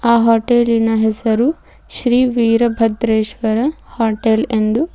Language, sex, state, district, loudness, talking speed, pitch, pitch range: Kannada, female, Karnataka, Bidar, -15 LUFS, 85 wpm, 230 Hz, 220-240 Hz